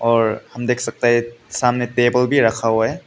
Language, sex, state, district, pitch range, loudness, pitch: Hindi, male, Meghalaya, West Garo Hills, 115-125 Hz, -18 LUFS, 120 Hz